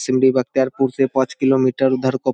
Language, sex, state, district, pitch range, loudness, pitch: Hindi, male, Bihar, Saharsa, 130-135 Hz, -18 LUFS, 130 Hz